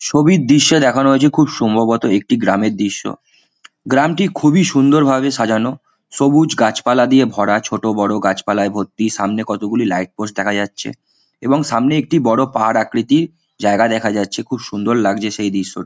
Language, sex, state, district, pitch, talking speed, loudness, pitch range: Bengali, male, West Bengal, Malda, 115 Hz, 150 wpm, -15 LUFS, 105-140 Hz